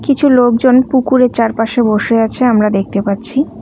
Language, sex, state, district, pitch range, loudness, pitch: Bengali, female, West Bengal, Cooch Behar, 220-255 Hz, -12 LUFS, 235 Hz